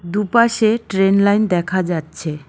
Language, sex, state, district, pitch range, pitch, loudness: Bengali, female, West Bengal, Cooch Behar, 175-215 Hz, 195 Hz, -16 LUFS